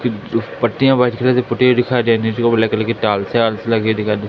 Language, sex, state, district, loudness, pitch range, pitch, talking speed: Hindi, male, Madhya Pradesh, Katni, -16 LUFS, 110-125 Hz, 115 Hz, 280 wpm